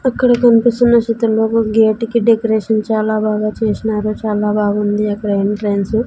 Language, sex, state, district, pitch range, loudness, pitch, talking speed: Telugu, female, Andhra Pradesh, Sri Satya Sai, 210-230 Hz, -15 LUFS, 220 Hz, 150 wpm